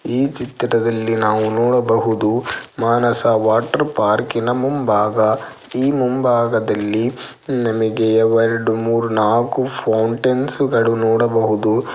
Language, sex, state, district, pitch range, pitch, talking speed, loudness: Kannada, male, Karnataka, Dakshina Kannada, 110-125 Hz, 115 Hz, 90 wpm, -17 LUFS